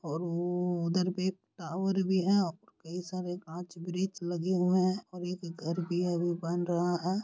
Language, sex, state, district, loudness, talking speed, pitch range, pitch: Hindi, male, Uttar Pradesh, Deoria, -32 LUFS, 200 wpm, 175-185 Hz, 180 Hz